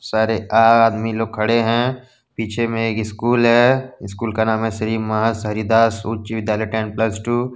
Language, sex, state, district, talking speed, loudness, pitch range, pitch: Hindi, male, Jharkhand, Deoghar, 180 wpm, -18 LUFS, 110-115 Hz, 115 Hz